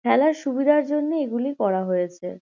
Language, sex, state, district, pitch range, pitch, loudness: Bengali, female, West Bengal, Kolkata, 190-295 Hz, 265 Hz, -22 LUFS